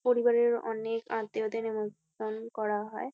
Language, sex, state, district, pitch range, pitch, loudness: Bengali, female, West Bengal, Kolkata, 215-235 Hz, 225 Hz, -31 LUFS